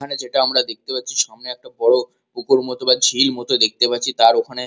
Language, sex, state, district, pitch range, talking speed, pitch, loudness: Bengali, male, West Bengal, Kolkata, 125-140 Hz, 220 wpm, 125 Hz, -17 LUFS